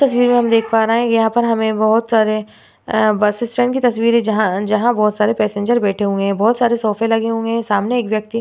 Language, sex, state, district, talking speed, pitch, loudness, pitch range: Hindi, female, Bihar, Vaishali, 250 wpm, 225 Hz, -16 LUFS, 215-235 Hz